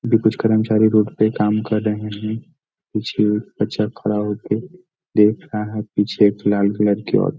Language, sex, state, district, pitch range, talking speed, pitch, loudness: Hindi, male, Bihar, Muzaffarpur, 105-110 Hz, 195 wpm, 105 Hz, -19 LUFS